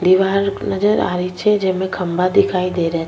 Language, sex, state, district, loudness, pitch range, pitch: Rajasthani, female, Rajasthan, Nagaur, -17 LUFS, 180-195 Hz, 185 Hz